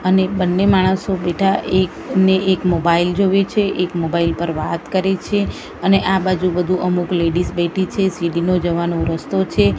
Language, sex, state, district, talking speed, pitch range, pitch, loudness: Gujarati, female, Gujarat, Gandhinagar, 170 wpm, 170-190 Hz, 185 Hz, -17 LUFS